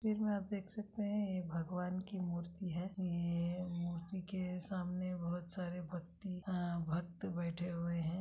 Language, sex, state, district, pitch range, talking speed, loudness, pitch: Hindi, female, Uttarakhand, Tehri Garhwal, 170-190 Hz, 160 wpm, -41 LUFS, 180 Hz